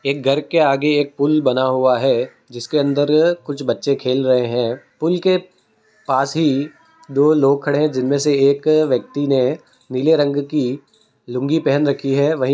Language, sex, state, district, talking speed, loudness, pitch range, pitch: Hindi, female, Uttar Pradesh, Muzaffarnagar, 180 wpm, -17 LUFS, 130-150 Hz, 140 Hz